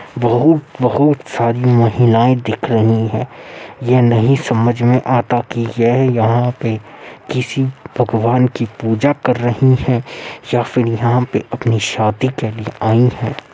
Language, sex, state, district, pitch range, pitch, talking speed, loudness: Hindi, male, Uttar Pradesh, Muzaffarnagar, 115-125 Hz, 120 Hz, 140 wpm, -15 LUFS